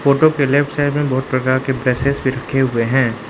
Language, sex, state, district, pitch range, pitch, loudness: Hindi, male, Arunachal Pradesh, Lower Dibang Valley, 130-140 Hz, 135 Hz, -17 LUFS